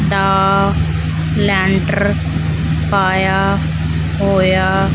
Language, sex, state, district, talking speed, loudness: Punjabi, female, Punjab, Fazilka, 60 wpm, -15 LUFS